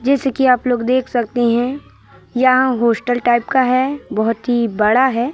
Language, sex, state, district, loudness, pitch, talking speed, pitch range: Hindi, female, Madhya Pradesh, Katni, -16 LUFS, 250 Hz, 180 wpm, 235-260 Hz